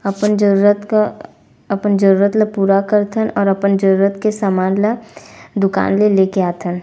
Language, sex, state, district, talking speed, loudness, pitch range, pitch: Chhattisgarhi, female, Chhattisgarh, Raigarh, 160 wpm, -15 LUFS, 195-210 Hz, 200 Hz